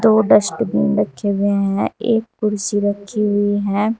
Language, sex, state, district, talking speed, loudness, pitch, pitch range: Hindi, female, Uttar Pradesh, Saharanpur, 150 wpm, -18 LUFS, 205 Hz, 200-215 Hz